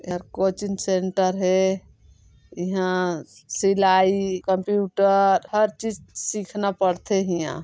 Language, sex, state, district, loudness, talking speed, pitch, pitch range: Chhattisgarhi, female, Chhattisgarh, Sarguja, -22 LUFS, 100 wpm, 190 Hz, 185-200 Hz